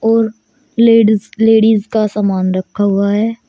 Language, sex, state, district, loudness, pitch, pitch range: Hindi, female, Uttar Pradesh, Shamli, -13 LUFS, 220 Hz, 205-225 Hz